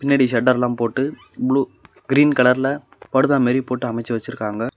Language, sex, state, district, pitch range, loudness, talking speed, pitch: Tamil, male, Tamil Nadu, Namakkal, 120-135 Hz, -19 LUFS, 140 wpm, 130 Hz